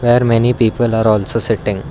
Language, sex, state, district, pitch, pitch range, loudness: English, male, Karnataka, Bangalore, 115 Hz, 110-120 Hz, -14 LUFS